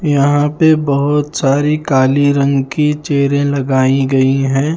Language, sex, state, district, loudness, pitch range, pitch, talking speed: Hindi, male, Himachal Pradesh, Shimla, -13 LUFS, 135-150 Hz, 140 Hz, 140 wpm